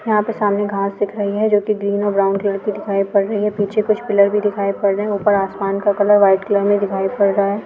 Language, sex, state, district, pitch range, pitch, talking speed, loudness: Hindi, female, Bihar, Araria, 200-210 Hz, 205 Hz, 305 wpm, -17 LUFS